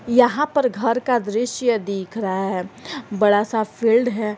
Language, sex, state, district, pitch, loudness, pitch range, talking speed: Hindi, female, Jharkhand, Garhwa, 230 Hz, -20 LUFS, 205-245 Hz, 165 wpm